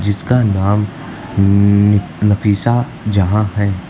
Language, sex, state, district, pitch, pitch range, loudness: Hindi, male, Uttar Pradesh, Lucknow, 105 Hz, 100-105 Hz, -14 LUFS